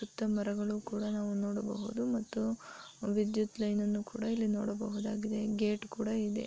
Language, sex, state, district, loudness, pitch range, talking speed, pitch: Kannada, female, Karnataka, Dharwad, -35 LUFS, 210-220 Hz, 130 wpm, 215 Hz